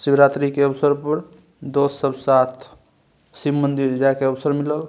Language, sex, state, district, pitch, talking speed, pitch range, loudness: Maithili, male, Bihar, Saharsa, 140 Hz, 160 wpm, 135-145 Hz, -19 LUFS